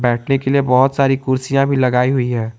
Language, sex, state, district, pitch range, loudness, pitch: Hindi, male, Jharkhand, Garhwa, 125-135 Hz, -16 LUFS, 130 Hz